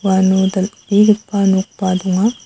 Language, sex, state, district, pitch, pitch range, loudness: Garo, female, Meghalaya, South Garo Hills, 190 Hz, 190-205 Hz, -15 LUFS